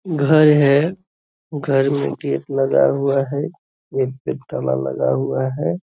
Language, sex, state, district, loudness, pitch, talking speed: Hindi, male, Bihar, Purnia, -18 LUFS, 135 Hz, 155 wpm